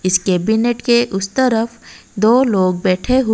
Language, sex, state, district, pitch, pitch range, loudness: Hindi, female, Odisha, Malkangiri, 220 Hz, 190-240 Hz, -16 LUFS